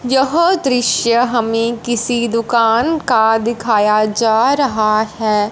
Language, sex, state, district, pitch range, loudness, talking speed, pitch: Hindi, female, Punjab, Fazilka, 220-250 Hz, -14 LUFS, 110 wpm, 235 Hz